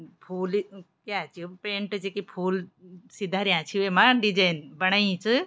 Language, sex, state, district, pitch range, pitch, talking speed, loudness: Garhwali, female, Uttarakhand, Tehri Garhwal, 180-200 Hz, 190 Hz, 165 wpm, -25 LUFS